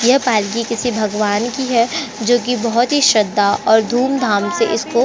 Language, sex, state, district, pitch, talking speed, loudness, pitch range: Hindi, female, Chhattisgarh, Korba, 230 Hz, 180 wpm, -16 LUFS, 215-245 Hz